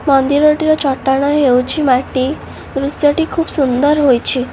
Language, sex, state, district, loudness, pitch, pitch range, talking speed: Odia, female, Odisha, Khordha, -14 LUFS, 280 Hz, 265-300 Hz, 105 wpm